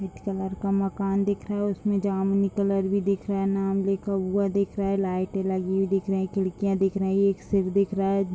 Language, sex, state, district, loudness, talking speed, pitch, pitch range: Hindi, female, Bihar, Purnia, -26 LUFS, 250 wpm, 195 Hz, 195-200 Hz